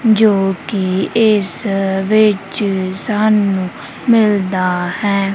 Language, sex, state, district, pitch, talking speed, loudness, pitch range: Punjabi, female, Punjab, Kapurthala, 195 Hz, 80 wpm, -15 LUFS, 190-215 Hz